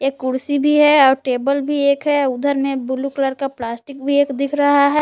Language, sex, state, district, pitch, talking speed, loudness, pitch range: Hindi, female, Jharkhand, Palamu, 275 Hz, 240 wpm, -17 LUFS, 270-285 Hz